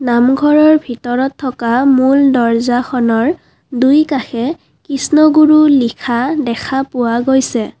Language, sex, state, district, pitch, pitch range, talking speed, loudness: Assamese, female, Assam, Kamrup Metropolitan, 260 Hz, 240-285 Hz, 85 wpm, -12 LUFS